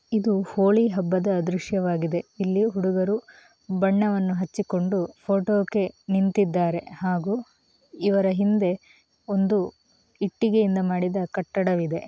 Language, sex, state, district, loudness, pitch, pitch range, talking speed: Kannada, female, Karnataka, Mysore, -24 LUFS, 195 Hz, 185-205 Hz, 85 wpm